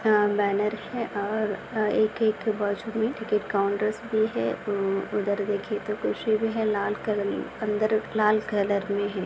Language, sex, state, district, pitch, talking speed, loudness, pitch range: Hindi, female, Maharashtra, Aurangabad, 210 Hz, 175 wpm, -26 LUFS, 200-215 Hz